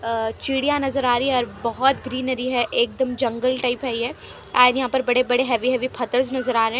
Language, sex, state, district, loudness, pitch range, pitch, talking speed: Hindi, female, Haryana, Charkhi Dadri, -21 LUFS, 240-260 Hz, 255 Hz, 240 wpm